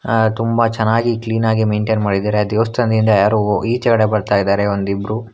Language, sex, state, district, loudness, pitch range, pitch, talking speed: Kannada, male, Karnataka, Bangalore, -16 LUFS, 105-115 Hz, 110 Hz, 145 wpm